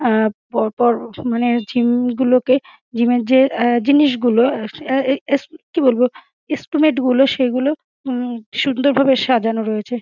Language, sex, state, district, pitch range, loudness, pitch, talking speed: Bengali, female, West Bengal, Dakshin Dinajpur, 240-275 Hz, -17 LUFS, 255 Hz, 145 wpm